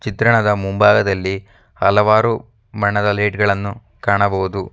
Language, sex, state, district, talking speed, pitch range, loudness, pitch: Kannada, male, Karnataka, Bangalore, 90 wpm, 100-110 Hz, -16 LUFS, 105 Hz